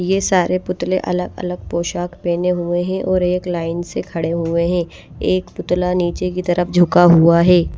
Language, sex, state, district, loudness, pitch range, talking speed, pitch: Hindi, female, Odisha, Malkangiri, -17 LUFS, 175-180 Hz, 175 wpm, 175 Hz